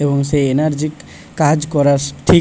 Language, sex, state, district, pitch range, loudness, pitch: Bengali, male, West Bengal, Paschim Medinipur, 140-155 Hz, -16 LUFS, 145 Hz